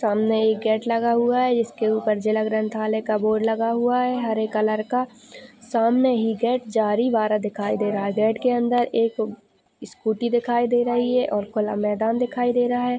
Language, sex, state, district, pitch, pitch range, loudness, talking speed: Hindi, female, Chhattisgarh, Sarguja, 225 Hz, 215-240 Hz, -22 LUFS, 205 wpm